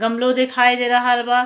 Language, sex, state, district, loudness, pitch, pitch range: Bhojpuri, female, Uttar Pradesh, Deoria, -16 LUFS, 245 Hz, 245-250 Hz